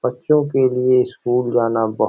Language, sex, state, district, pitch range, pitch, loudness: Hindi, male, Uttar Pradesh, Hamirpur, 120-130 Hz, 125 Hz, -17 LUFS